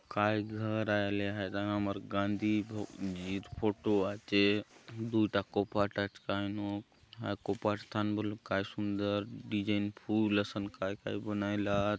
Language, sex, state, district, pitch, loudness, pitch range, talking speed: Halbi, male, Chhattisgarh, Bastar, 100 Hz, -34 LUFS, 100-105 Hz, 160 wpm